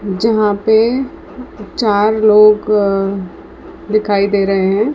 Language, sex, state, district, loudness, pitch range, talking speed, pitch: Hindi, female, Karnataka, Bangalore, -13 LUFS, 200-220 Hz, 110 wpm, 210 Hz